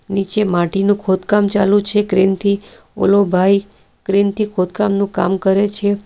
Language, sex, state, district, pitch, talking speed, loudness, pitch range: Gujarati, female, Gujarat, Valsad, 200 Hz, 150 wpm, -16 LUFS, 190-205 Hz